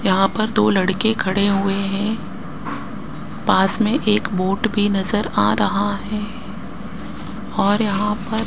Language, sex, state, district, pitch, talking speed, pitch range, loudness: Hindi, male, Rajasthan, Jaipur, 205 Hz, 140 wpm, 195-215 Hz, -19 LUFS